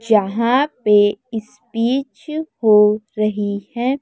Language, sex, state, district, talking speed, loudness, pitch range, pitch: Hindi, female, Chhattisgarh, Raipur, 90 wpm, -17 LUFS, 210-255 Hz, 220 Hz